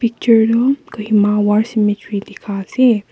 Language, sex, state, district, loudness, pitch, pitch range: Nagamese, female, Nagaland, Kohima, -15 LUFS, 215 Hz, 205-235 Hz